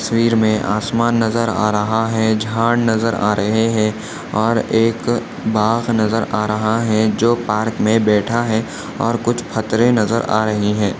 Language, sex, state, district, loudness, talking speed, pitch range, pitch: Hindi, male, Maharashtra, Dhule, -17 LUFS, 175 wpm, 110-115 Hz, 110 Hz